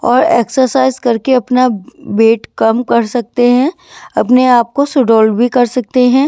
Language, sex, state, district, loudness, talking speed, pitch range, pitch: Hindi, female, Himachal Pradesh, Shimla, -12 LUFS, 160 wpm, 235-260 Hz, 250 Hz